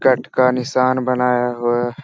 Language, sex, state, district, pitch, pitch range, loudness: Hindi, male, Bihar, Jahanabad, 125 Hz, 120-130 Hz, -17 LUFS